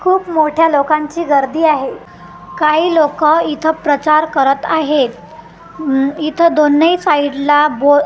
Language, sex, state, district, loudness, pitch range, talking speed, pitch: Marathi, female, Maharashtra, Gondia, -13 LUFS, 285-320 Hz, 110 wpm, 300 Hz